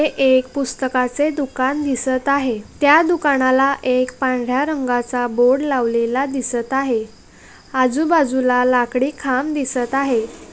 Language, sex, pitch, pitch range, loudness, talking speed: Marathi, female, 260 Hz, 250-280 Hz, -18 LUFS, 140 wpm